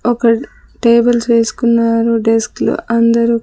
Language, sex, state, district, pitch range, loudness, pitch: Telugu, female, Andhra Pradesh, Sri Satya Sai, 230-235 Hz, -13 LUFS, 235 Hz